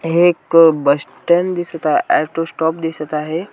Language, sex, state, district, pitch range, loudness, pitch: Marathi, male, Maharashtra, Washim, 155-170 Hz, -16 LUFS, 165 Hz